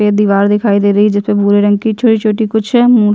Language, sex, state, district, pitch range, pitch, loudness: Hindi, female, Chhattisgarh, Bastar, 205-220 Hz, 210 Hz, -11 LUFS